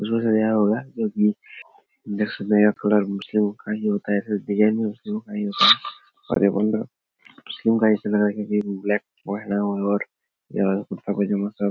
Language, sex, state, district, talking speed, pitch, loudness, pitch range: Hindi, male, Uttar Pradesh, Etah, 115 wpm, 105 Hz, -22 LUFS, 100-110 Hz